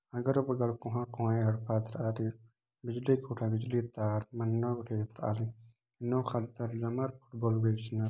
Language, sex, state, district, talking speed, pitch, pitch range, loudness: Sadri, male, Chhattisgarh, Jashpur, 125 wpm, 115 Hz, 110-120 Hz, -34 LUFS